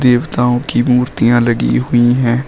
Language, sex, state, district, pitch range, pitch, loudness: Hindi, male, Uttar Pradesh, Shamli, 120-125 Hz, 120 Hz, -13 LUFS